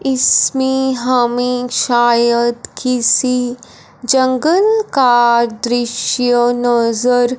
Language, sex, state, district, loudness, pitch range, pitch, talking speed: Hindi, female, Punjab, Fazilka, -14 LUFS, 240-255 Hz, 245 Hz, 65 wpm